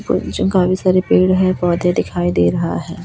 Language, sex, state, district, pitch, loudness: Hindi, female, Chhattisgarh, Raipur, 180 Hz, -16 LUFS